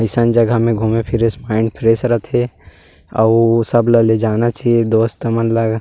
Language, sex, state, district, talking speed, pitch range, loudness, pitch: Chhattisgarhi, male, Chhattisgarh, Rajnandgaon, 175 wpm, 110-115 Hz, -15 LUFS, 115 Hz